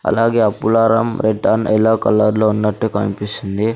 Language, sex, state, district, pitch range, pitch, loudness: Telugu, male, Andhra Pradesh, Sri Satya Sai, 105-115 Hz, 110 Hz, -16 LUFS